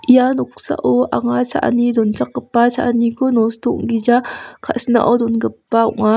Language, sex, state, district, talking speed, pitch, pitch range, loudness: Garo, female, Meghalaya, West Garo Hills, 105 wpm, 230 Hz, 220-240 Hz, -16 LUFS